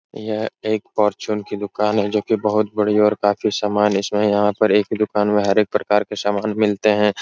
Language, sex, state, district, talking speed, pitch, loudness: Hindi, male, Uttar Pradesh, Etah, 215 wpm, 105 Hz, -19 LUFS